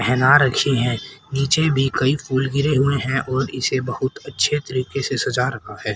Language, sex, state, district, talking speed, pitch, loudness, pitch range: Hindi, male, Haryana, Rohtak, 190 wpm, 130 Hz, -20 LUFS, 125-140 Hz